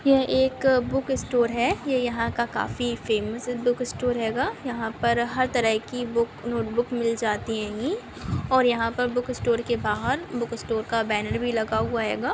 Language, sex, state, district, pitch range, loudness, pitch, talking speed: Hindi, female, Bihar, Sitamarhi, 230-250 Hz, -25 LUFS, 240 Hz, 185 wpm